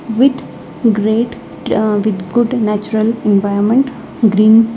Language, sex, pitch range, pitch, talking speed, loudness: English, female, 210-240 Hz, 220 Hz, 100 wpm, -14 LUFS